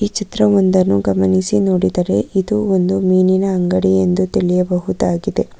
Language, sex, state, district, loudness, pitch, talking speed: Kannada, female, Karnataka, Bangalore, -15 LUFS, 180 Hz, 105 wpm